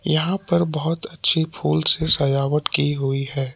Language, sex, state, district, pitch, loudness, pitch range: Hindi, male, Jharkhand, Palamu, 155 Hz, -18 LUFS, 140-165 Hz